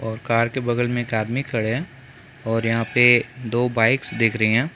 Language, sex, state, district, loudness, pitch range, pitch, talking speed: Hindi, male, Chhattisgarh, Bilaspur, -20 LUFS, 115-130 Hz, 120 Hz, 225 wpm